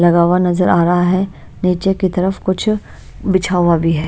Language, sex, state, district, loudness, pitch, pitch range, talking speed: Hindi, female, Bihar, Patna, -15 LUFS, 180 Hz, 175-190 Hz, 205 wpm